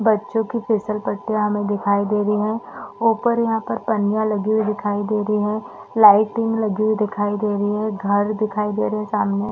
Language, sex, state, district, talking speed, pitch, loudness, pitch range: Hindi, female, Chhattisgarh, Bastar, 210 wpm, 210 Hz, -20 LUFS, 205-220 Hz